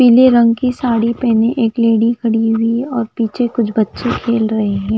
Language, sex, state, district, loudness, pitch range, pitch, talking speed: Hindi, female, Punjab, Fazilka, -14 LUFS, 225-240 Hz, 230 Hz, 205 wpm